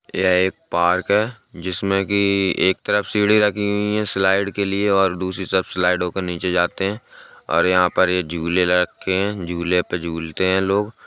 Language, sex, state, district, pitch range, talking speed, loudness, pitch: Hindi, male, Uttar Pradesh, Jalaun, 90-100 Hz, 190 wpm, -19 LUFS, 95 Hz